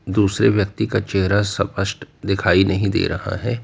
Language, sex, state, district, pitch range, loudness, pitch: Hindi, male, Uttar Pradesh, Lalitpur, 95-110 Hz, -19 LUFS, 100 Hz